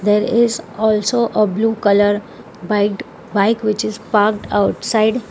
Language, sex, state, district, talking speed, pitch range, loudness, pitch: English, female, Telangana, Hyderabad, 125 wpm, 205-225 Hz, -17 LUFS, 215 Hz